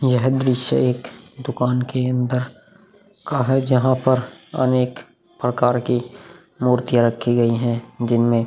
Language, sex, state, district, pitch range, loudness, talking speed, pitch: Hindi, male, Uttar Pradesh, Hamirpur, 125-130 Hz, -20 LUFS, 135 wpm, 125 Hz